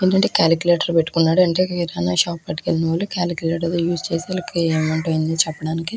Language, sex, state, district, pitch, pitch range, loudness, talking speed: Telugu, female, Andhra Pradesh, Krishna, 170 Hz, 160-175 Hz, -19 LUFS, 140 wpm